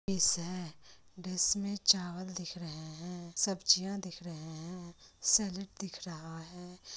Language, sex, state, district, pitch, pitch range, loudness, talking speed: Hindi, female, Bihar, Lakhisarai, 180 Hz, 170-190 Hz, -33 LUFS, 140 wpm